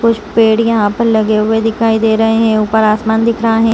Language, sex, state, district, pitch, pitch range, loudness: Hindi, female, Chhattisgarh, Rajnandgaon, 225 Hz, 220-225 Hz, -12 LUFS